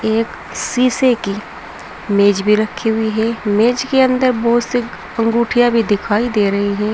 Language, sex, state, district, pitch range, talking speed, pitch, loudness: Hindi, female, Uttar Pradesh, Saharanpur, 210-240 Hz, 165 wpm, 225 Hz, -16 LUFS